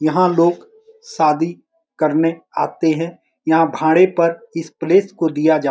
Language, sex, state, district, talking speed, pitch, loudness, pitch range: Hindi, male, Bihar, Saran, 160 wpm, 165 Hz, -17 LUFS, 160-185 Hz